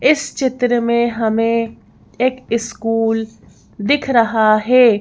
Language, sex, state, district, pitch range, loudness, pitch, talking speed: Hindi, female, Madhya Pradesh, Bhopal, 225-250 Hz, -16 LUFS, 235 Hz, 110 wpm